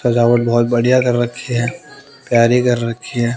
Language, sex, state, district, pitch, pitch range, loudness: Hindi, male, Bihar, West Champaran, 120 Hz, 120-125 Hz, -15 LUFS